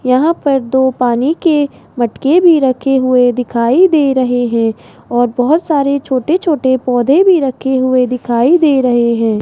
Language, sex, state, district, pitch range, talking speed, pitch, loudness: Hindi, female, Rajasthan, Jaipur, 245-295 Hz, 165 wpm, 260 Hz, -12 LUFS